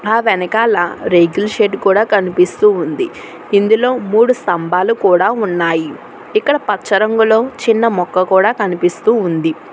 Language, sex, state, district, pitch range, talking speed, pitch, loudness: Telugu, female, Telangana, Hyderabad, 180-230 Hz, 125 wpm, 210 Hz, -14 LUFS